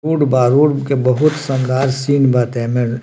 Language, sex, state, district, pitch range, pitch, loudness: Bhojpuri, male, Bihar, Muzaffarpur, 125-145 Hz, 135 Hz, -15 LUFS